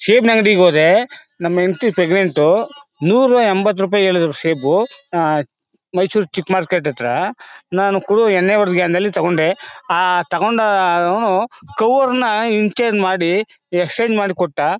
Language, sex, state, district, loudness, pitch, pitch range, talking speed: Kannada, male, Karnataka, Mysore, -16 LUFS, 190 Hz, 175-215 Hz, 130 wpm